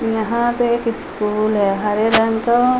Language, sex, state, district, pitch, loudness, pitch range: Hindi, female, Uttar Pradesh, Hamirpur, 225 Hz, -17 LUFS, 215-235 Hz